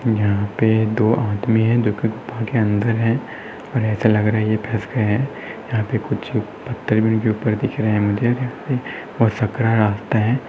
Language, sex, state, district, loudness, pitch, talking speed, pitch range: Hindi, male, Maharashtra, Nagpur, -20 LUFS, 110 Hz, 200 wpm, 110-115 Hz